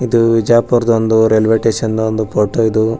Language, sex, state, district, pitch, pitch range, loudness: Kannada, male, Karnataka, Bijapur, 110 Hz, 110-115 Hz, -13 LUFS